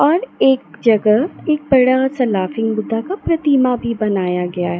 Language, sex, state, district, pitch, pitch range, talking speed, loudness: Hindi, female, Jharkhand, Jamtara, 245 Hz, 215-280 Hz, 175 wpm, -16 LUFS